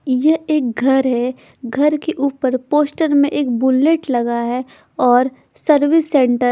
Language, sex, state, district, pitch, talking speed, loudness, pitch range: Hindi, female, Bihar, Patna, 270 Hz, 155 wpm, -16 LUFS, 250-295 Hz